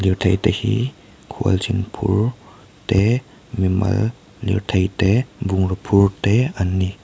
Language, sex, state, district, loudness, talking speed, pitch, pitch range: Mizo, male, Mizoram, Aizawl, -19 LUFS, 120 wpm, 100 Hz, 95-115 Hz